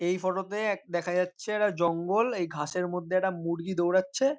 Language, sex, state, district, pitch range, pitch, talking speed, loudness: Bengali, male, West Bengal, North 24 Parganas, 175-205 Hz, 180 Hz, 190 wpm, -29 LUFS